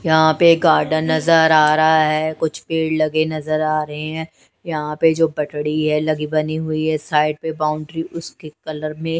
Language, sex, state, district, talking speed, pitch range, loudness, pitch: Hindi, female, Odisha, Nuapada, 190 wpm, 155-160 Hz, -18 LUFS, 155 Hz